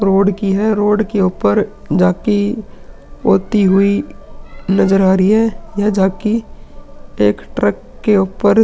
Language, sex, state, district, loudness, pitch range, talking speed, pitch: Hindi, male, Uttar Pradesh, Hamirpur, -15 LUFS, 190-210 Hz, 140 wpm, 200 Hz